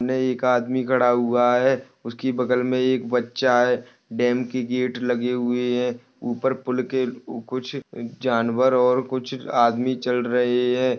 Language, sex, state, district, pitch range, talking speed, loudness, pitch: Hindi, male, Rajasthan, Churu, 120-130 Hz, 160 wpm, -22 LUFS, 125 Hz